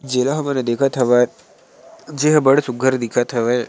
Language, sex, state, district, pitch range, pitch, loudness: Chhattisgarhi, male, Chhattisgarh, Sarguja, 120-140 Hz, 130 Hz, -17 LUFS